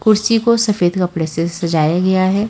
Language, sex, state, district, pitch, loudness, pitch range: Hindi, female, Haryana, Charkhi Dadri, 185 Hz, -15 LUFS, 170-215 Hz